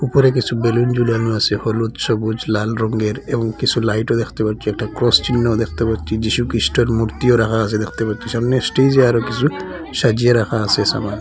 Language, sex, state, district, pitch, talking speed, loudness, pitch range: Bengali, male, Assam, Hailakandi, 115 Hz, 175 wpm, -17 LUFS, 110-120 Hz